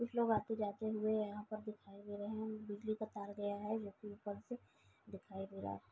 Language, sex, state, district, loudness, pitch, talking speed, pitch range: Hindi, female, Uttar Pradesh, Gorakhpur, -43 LUFS, 210 Hz, 235 wpm, 205-215 Hz